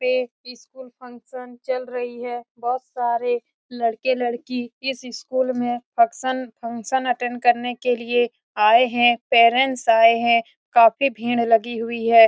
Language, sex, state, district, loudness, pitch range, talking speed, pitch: Hindi, female, Bihar, Lakhisarai, -20 LUFS, 235-255 Hz, 145 wpm, 245 Hz